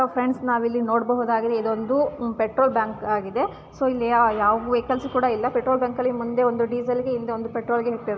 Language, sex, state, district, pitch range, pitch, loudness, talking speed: Kannada, female, Karnataka, Dharwad, 230-250 Hz, 240 Hz, -23 LUFS, 185 wpm